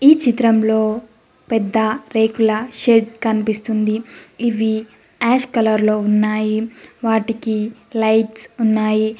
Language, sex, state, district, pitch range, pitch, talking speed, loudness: Telugu, female, Telangana, Mahabubabad, 215-230 Hz, 220 Hz, 90 wpm, -17 LUFS